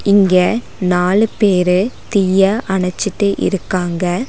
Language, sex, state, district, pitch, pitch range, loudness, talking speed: Tamil, female, Tamil Nadu, Nilgiris, 190 Hz, 180-205 Hz, -15 LUFS, 85 wpm